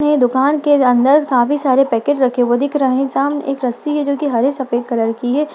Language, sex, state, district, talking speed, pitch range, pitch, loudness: Hindi, female, Bihar, Bhagalpur, 240 wpm, 245-290 Hz, 270 Hz, -15 LUFS